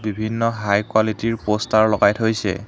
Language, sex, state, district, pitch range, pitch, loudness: Assamese, male, Assam, Hailakandi, 105-110 Hz, 110 Hz, -19 LUFS